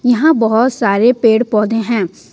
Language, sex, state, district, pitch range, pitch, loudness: Hindi, female, Jharkhand, Ranchi, 220-245 Hz, 225 Hz, -13 LUFS